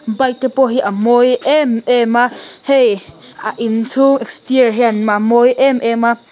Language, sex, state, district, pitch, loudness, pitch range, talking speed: Mizo, female, Mizoram, Aizawl, 245 Hz, -13 LUFS, 230-260 Hz, 180 wpm